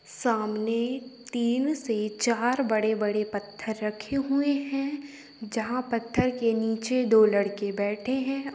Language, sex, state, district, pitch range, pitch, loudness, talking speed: Hindi, female, Bihar, Gopalganj, 215-265 Hz, 235 Hz, -27 LUFS, 120 wpm